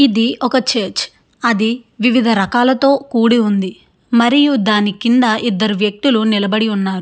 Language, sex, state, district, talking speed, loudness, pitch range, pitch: Telugu, female, Andhra Pradesh, Srikakulam, 135 wpm, -14 LUFS, 215-250 Hz, 230 Hz